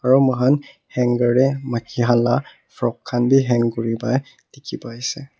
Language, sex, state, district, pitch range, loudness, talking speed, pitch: Nagamese, male, Nagaland, Kohima, 120-135 Hz, -20 LUFS, 145 wpm, 125 Hz